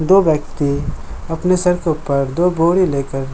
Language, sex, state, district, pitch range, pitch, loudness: Hindi, male, Jharkhand, Jamtara, 140-180 Hz, 160 Hz, -17 LUFS